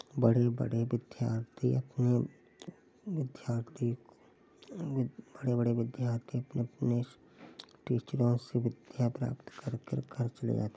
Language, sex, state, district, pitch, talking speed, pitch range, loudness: Hindi, male, Uttar Pradesh, Hamirpur, 120 Hz, 95 wpm, 120-125 Hz, -34 LUFS